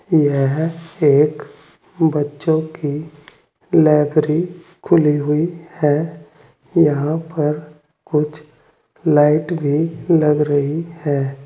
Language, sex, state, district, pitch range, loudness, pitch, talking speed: Hindi, male, Uttar Pradesh, Saharanpur, 150-160 Hz, -17 LUFS, 150 Hz, 85 wpm